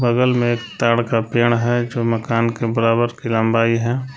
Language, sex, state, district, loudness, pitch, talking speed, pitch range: Hindi, male, Jharkhand, Palamu, -18 LUFS, 115 Hz, 200 wpm, 115-120 Hz